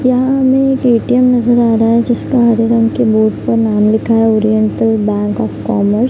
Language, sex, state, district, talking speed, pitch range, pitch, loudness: Hindi, female, Bihar, Araria, 215 wpm, 215-245 Hz, 230 Hz, -12 LUFS